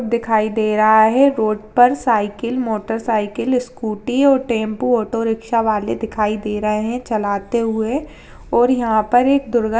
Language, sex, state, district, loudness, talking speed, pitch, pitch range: Hindi, female, Uttar Pradesh, Jyotiba Phule Nagar, -17 LUFS, 155 wpm, 225 Hz, 215-245 Hz